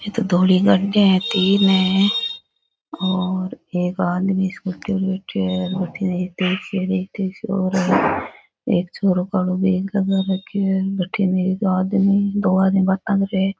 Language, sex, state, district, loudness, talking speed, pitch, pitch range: Rajasthani, female, Rajasthan, Churu, -19 LUFS, 45 wpm, 190 Hz, 185-195 Hz